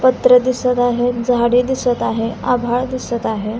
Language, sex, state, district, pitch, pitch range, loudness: Marathi, female, Maharashtra, Aurangabad, 245 Hz, 235-250 Hz, -16 LUFS